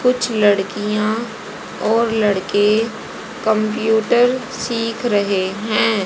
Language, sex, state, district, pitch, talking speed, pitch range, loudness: Hindi, female, Haryana, Jhajjar, 220 Hz, 80 wpm, 210-230 Hz, -18 LUFS